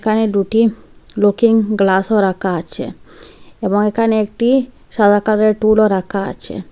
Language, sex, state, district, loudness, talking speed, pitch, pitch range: Bengali, female, Assam, Hailakandi, -15 LUFS, 125 wpm, 215 Hz, 200-220 Hz